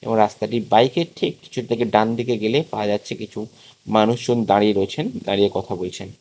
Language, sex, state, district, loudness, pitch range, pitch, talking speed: Bengali, male, Tripura, West Tripura, -21 LUFS, 105-120 Hz, 110 Hz, 165 wpm